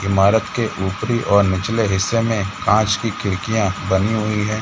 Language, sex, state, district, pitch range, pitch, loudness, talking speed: Hindi, male, Jharkhand, Jamtara, 95-110 Hz, 105 Hz, -18 LUFS, 170 wpm